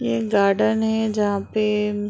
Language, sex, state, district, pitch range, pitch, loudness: Hindi, female, Uttar Pradesh, Deoria, 200-215 Hz, 210 Hz, -21 LUFS